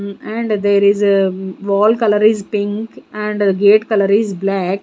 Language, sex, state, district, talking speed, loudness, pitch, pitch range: English, female, Punjab, Kapurthala, 160 wpm, -15 LUFS, 205 Hz, 200-210 Hz